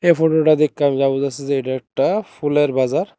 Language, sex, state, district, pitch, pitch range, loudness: Bengali, male, Tripura, West Tripura, 145 Hz, 135-160 Hz, -18 LUFS